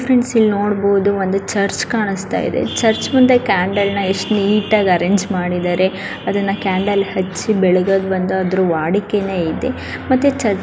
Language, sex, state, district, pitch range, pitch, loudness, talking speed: Kannada, female, Karnataka, Dharwad, 190-210 Hz, 200 Hz, -16 LUFS, 115 wpm